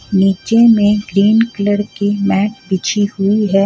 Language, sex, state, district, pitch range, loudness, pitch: Hindi, female, Jharkhand, Ranchi, 195-210 Hz, -14 LUFS, 205 Hz